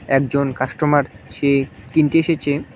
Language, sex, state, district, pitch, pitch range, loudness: Bengali, male, West Bengal, Cooch Behar, 140 Hz, 135-150 Hz, -18 LUFS